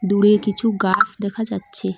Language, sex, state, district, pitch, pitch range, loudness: Bengali, female, West Bengal, Cooch Behar, 205 Hz, 195-210 Hz, -19 LUFS